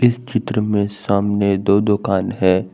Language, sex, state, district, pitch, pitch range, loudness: Hindi, male, Jharkhand, Garhwa, 100 Hz, 100-105 Hz, -18 LUFS